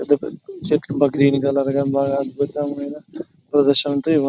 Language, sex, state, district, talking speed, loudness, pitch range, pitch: Telugu, male, Andhra Pradesh, Chittoor, 110 wpm, -19 LUFS, 140-150 Hz, 140 Hz